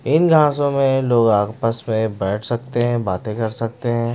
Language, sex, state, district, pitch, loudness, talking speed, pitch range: Hindi, male, Odisha, Malkangiri, 115 Hz, -19 LUFS, 190 wpm, 110-130 Hz